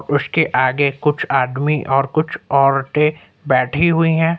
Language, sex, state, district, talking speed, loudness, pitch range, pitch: Hindi, male, Uttar Pradesh, Lucknow, 135 wpm, -17 LUFS, 135-155 Hz, 145 Hz